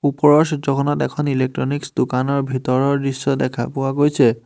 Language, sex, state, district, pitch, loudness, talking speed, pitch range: Assamese, male, Assam, Hailakandi, 140 Hz, -19 LUFS, 135 wpm, 130-145 Hz